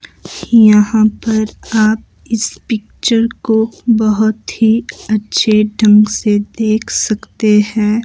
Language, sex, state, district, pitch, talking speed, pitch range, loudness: Hindi, male, Himachal Pradesh, Shimla, 215 Hz, 105 wpm, 215-225 Hz, -13 LUFS